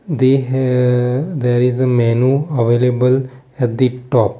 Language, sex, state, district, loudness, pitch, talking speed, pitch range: English, male, Gujarat, Valsad, -15 LUFS, 125 Hz, 135 wpm, 125-130 Hz